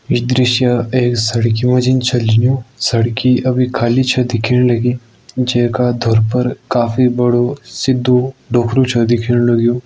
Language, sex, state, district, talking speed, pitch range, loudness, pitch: Garhwali, male, Uttarakhand, Uttarkashi, 145 wpm, 120-125 Hz, -14 LUFS, 125 Hz